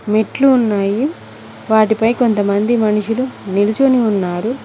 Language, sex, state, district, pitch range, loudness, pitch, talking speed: Telugu, female, Telangana, Mahabubabad, 205-245 Hz, -15 LUFS, 220 Hz, 90 wpm